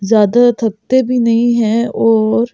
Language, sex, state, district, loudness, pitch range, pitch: Hindi, female, Delhi, New Delhi, -13 LUFS, 220-240 Hz, 230 Hz